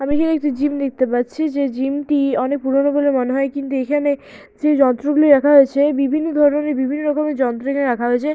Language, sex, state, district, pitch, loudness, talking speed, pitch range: Bengali, female, West Bengal, Malda, 280 Hz, -17 LUFS, 210 wpm, 270-295 Hz